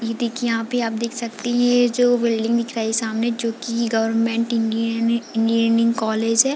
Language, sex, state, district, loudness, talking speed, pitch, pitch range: Hindi, female, Chhattisgarh, Bilaspur, -20 LUFS, 200 wpm, 230 Hz, 225-235 Hz